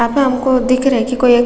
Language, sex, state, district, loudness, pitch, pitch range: Hindi, female, Chhattisgarh, Raigarh, -14 LUFS, 255 Hz, 245-265 Hz